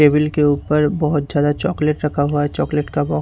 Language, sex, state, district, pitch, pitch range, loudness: Hindi, male, Bihar, Katihar, 150 Hz, 145-150 Hz, -18 LUFS